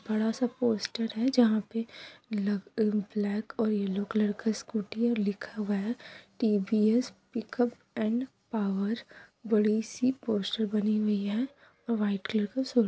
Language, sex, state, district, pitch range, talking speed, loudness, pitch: Kumaoni, female, Uttarakhand, Tehri Garhwal, 210-235 Hz, 150 wpm, -30 LUFS, 220 Hz